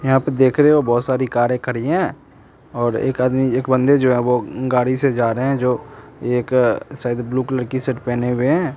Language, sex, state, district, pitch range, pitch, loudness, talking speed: Maithili, male, Bihar, Samastipur, 125-135 Hz, 130 Hz, -18 LUFS, 225 wpm